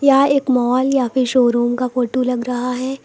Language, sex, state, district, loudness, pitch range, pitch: Hindi, female, Uttar Pradesh, Lucknow, -17 LUFS, 250-265 Hz, 255 Hz